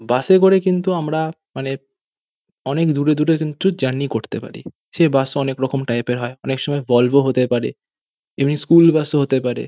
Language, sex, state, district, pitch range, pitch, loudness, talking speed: Bengali, male, West Bengal, North 24 Parganas, 130-160 Hz, 140 Hz, -18 LUFS, 200 wpm